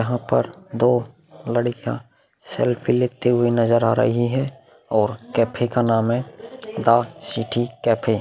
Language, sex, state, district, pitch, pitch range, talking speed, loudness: Hindi, male, Uttar Pradesh, Muzaffarnagar, 120 Hz, 115-125 Hz, 145 wpm, -21 LUFS